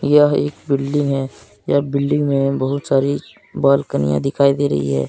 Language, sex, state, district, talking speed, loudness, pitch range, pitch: Hindi, male, Jharkhand, Deoghar, 165 wpm, -18 LUFS, 135-145 Hz, 140 Hz